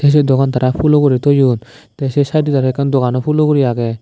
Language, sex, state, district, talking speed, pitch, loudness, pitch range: Chakma, male, Tripura, Dhalai, 225 wpm, 135 Hz, -14 LUFS, 130-145 Hz